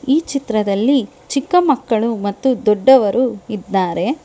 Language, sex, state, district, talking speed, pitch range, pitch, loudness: Kannada, female, Karnataka, Bangalore, 100 wpm, 210-275 Hz, 240 Hz, -16 LUFS